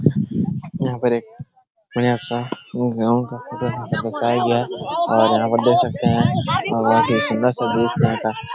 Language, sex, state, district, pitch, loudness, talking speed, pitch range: Hindi, male, Bihar, Araria, 120 Hz, -20 LUFS, 170 wpm, 120-125 Hz